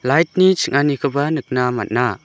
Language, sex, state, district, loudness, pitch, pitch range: Garo, male, Meghalaya, South Garo Hills, -17 LUFS, 140 Hz, 125-155 Hz